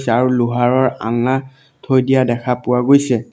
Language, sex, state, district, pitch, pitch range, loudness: Assamese, male, Assam, Sonitpur, 125 Hz, 120-130 Hz, -16 LUFS